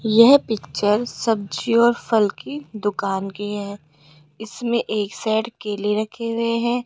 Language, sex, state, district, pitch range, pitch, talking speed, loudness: Hindi, female, Rajasthan, Jaipur, 205-235 Hz, 220 Hz, 140 wpm, -21 LUFS